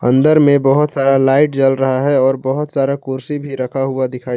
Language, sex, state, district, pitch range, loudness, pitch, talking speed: Hindi, male, Jharkhand, Palamu, 130-140 Hz, -14 LUFS, 135 Hz, 220 wpm